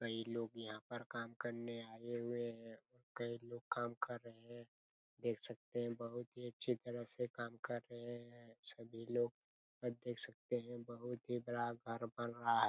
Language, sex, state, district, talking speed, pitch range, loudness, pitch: Hindi, male, Chhattisgarh, Raigarh, 185 wpm, 115-120 Hz, -45 LUFS, 120 Hz